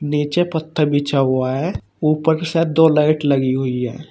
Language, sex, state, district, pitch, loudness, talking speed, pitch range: Hindi, male, Uttar Pradesh, Shamli, 150 Hz, -18 LUFS, 175 wpm, 135-160 Hz